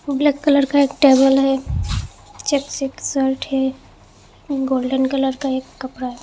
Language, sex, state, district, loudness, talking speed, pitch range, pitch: Hindi, female, Assam, Hailakandi, -19 LUFS, 165 wpm, 265-280 Hz, 270 Hz